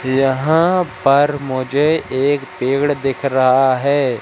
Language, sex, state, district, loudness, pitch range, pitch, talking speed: Hindi, male, Madhya Pradesh, Katni, -16 LUFS, 130-145 Hz, 135 Hz, 115 wpm